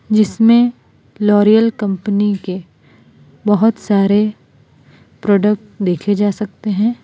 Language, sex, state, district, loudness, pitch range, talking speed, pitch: Hindi, female, Gujarat, Valsad, -15 LUFS, 195-215 Hz, 95 wpm, 205 Hz